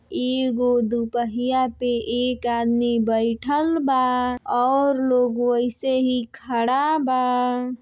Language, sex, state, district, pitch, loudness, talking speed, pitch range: Bhojpuri, female, Uttar Pradesh, Deoria, 250 Hz, -21 LUFS, 100 wpm, 240-260 Hz